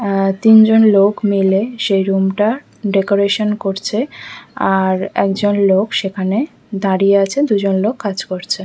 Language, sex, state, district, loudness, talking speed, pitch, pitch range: Bengali, female, West Bengal, Kolkata, -15 LUFS, 130 wpm, 200 Hz, 195-210 Hz